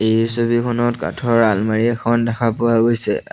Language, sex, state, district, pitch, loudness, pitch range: Assamese, male, Assam, Sonitpur, 115 Hz, -16 LUFS, 110-120 Hz